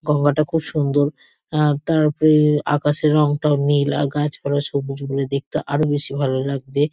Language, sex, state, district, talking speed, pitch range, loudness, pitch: Bengali, female, West Bengal, Kolkata, 165 wpm, 140-150 Hz, -19 LUFS, 145 Hz